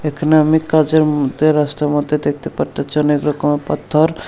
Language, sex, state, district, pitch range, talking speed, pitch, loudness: Bengali, male, Tripura, Unakoti, 145-155 Hz, 170 wpm, 150 Hz, -16 LUFS